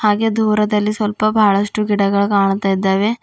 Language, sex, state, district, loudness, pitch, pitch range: Kannada, female, Karnataka, Bidar, -16 LUFS, 210 Hz, 200-215 Hz